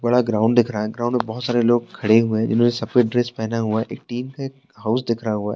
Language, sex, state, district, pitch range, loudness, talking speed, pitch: Hindi, male, Uttarakhand, Tehri Garhwal, 110-120 Hz, -20 LUFS, 280 wpm, 120 Hz